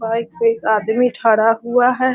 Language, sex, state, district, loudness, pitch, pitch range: Hindi, female, Bihar, Sitamarhi, -16 LUFS, 235 Hz, 225-255 Hz